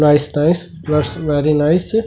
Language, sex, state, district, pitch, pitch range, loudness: Hindi, male, Delhi, New Delhi, 150 Hz, 150-170 Hz, -16 LUFS